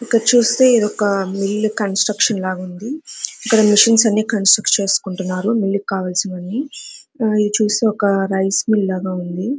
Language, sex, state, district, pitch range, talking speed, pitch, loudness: Telugu, female, Andhra Pradesh, Anantapur, 195-225 Hz, 145 wpm, 210 Hz, -16 LUFS